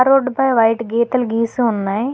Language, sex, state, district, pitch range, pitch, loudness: Telugu, female, Telangana, Hyderabad, 225-260 Hz, 235 Hz, -17 LUFS